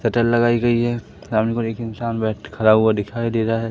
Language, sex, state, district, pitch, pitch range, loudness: Hindi, male, Madhya Pradesh, Umaria, 115 Hz, 110-120 Hz, -20 LUFS